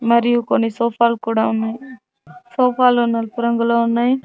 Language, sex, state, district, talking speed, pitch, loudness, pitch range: Telugu, female, Telangana, Mahabubabad, 155 wpm, 235 Hz, -17 LUFS, 230-240 Hz